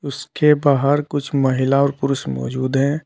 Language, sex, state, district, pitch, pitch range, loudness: Hindi, male, Uttar Pradesh, Saharanpur, 140 Hz, 135-145 Hz, -18 LUFS